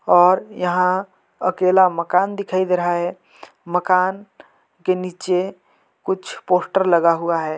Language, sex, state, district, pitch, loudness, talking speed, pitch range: Hindi, male, Chhattisgarh, Jashpur, 185 Hz, -19 LUFS, 125 wpm, 175-185 Hz